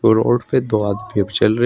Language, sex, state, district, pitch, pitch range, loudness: Hindi, male, Uttar Pradesh, Shamli, 110 Hz, 105-120 Hz, -18 LUFS